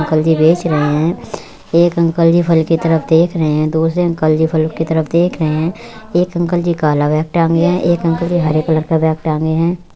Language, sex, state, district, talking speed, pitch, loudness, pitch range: Hindi, male, Uttar Pradesh, Budaun, 235 wpm, 165 Hz, -14 LUFS, 155-170 Hz